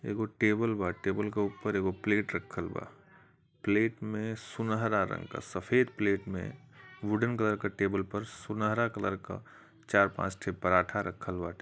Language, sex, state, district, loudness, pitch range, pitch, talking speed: Bhojpuri, male, Uttar Pradesh, Varanasi, -32 LUFS, 95-110 Hz, 105 Hz, 165 wpm